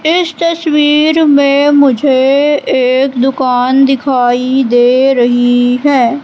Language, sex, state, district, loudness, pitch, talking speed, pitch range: Hindi, female, Madhya Pradesh, Katni, -10 LUFS, 270 Hz, 95 wpm, 250-290 Hz